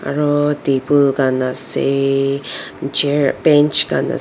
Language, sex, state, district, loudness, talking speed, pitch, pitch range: Nagamese, female, Nagaland, Dimapur, -16 LUFS, 115 wpm, 140 Hz, 135-145 Hz